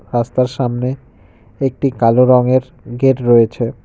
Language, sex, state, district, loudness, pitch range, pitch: Bengali, male, West Bengal, Cooch Behar, -15 LUFS, 120-130 Hz, 125 Hz